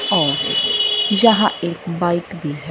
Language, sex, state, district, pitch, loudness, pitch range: Hindi, female, Punjab, Fazilka, 175 Hz, -17 LUFS, 170-205 Hz